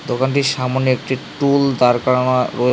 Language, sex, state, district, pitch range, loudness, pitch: Bengali, male, West Bengal, Cooch Behar, 125-135 Hz, -17 LUFS, 130 Hz